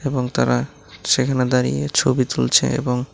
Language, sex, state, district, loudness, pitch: Bengali, male, Tripura, West Tripura, -19 LUFS, 125 Hz